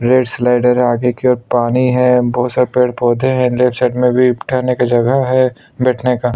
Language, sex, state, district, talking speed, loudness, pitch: Hindi, male, Chhattisgarh, Sukma, 210 wpm, -14 LUFS, 125 Hz